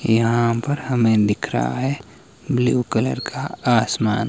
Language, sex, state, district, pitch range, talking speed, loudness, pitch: Hindi, male, Himachal Pradesh, Shimla, 110-125 Hz, 140 wpm, -20 LUFS, 120 Hz